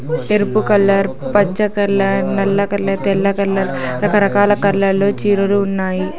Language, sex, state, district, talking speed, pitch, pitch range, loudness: Telugu, female, Telangana, Hyderabad, 125 wpm, 200 Hz, 195-205 Hz, -15 LUFS